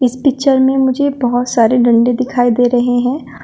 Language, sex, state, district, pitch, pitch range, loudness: Hindi, female, Uttar Pradesh, Shamli, 250 Hz, 245-265 Hz, -13 LUFS